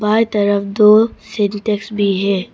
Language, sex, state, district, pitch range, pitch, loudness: Hindi, female, Arunachal Pradesh, Papum Pare, 200-215 Hz, 210 Hz, -15 LUFS